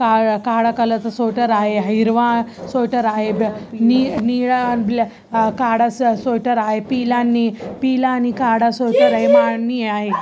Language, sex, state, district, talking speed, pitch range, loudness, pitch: Marathi, female, Maharashtra, Chandrapur, 130 wpm, 220-245 Hz, -17 LUFS, 230 Hz